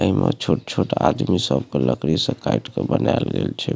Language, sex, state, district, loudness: Maithili, male, Bihar, Supaul, -21 LUFS